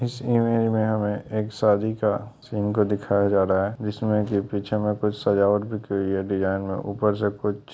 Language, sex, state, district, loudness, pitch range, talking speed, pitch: Hindi, male, Bihar, Jamui, -24 LUFS, 100-110 Hz, 225 wpm, 105 Hz